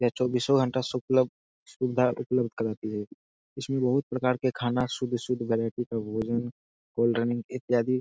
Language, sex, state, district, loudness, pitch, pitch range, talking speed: Hindi, male, Bihar, Jamui, -28 LUFS, 125 Hz, 115-130 Hz, 155 wpm